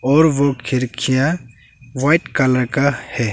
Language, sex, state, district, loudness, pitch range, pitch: Hindi, male, Arunachal Pradesh, Longding, -17 LUFS, 125-140 Hz, 130 Hz